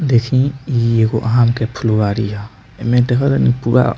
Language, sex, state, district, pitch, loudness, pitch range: Bhojpuri, male, Bihar, Muzaffarpur, 115 Hz, -15 LUFS, 110-125 Hz